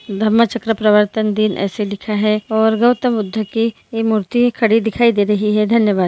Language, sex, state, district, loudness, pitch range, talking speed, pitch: Hindi, female, Bihar, Muzaffarpur, -16 LUFS, 210-225 Hz, 175 wpm, 220 Hz